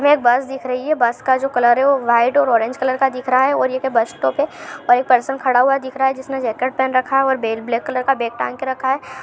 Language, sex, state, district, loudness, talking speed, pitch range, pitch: Hindi, female, Chhattisgarh, Sukma, -17 LUFS, 310 wpm, 245-270 Hz, 260 Hz